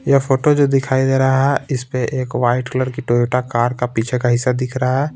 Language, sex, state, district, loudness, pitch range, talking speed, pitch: Hindi, male, Bihar, Patna, -17 LUFS, 125-135 Hz, 255 wpm, 130 Hz